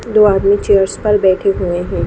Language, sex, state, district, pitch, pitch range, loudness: Hindi, female, Bihar, Sitamarhi, 195 Hz, 190-205 Hz, -13 LUFS